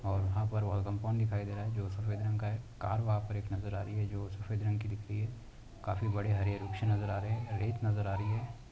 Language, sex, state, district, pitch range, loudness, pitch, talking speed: Hindi, male, Uttar Pradesh, Hamirpur, 100-110 Hz, -36 LUFS, 105 Hz, 295 wpm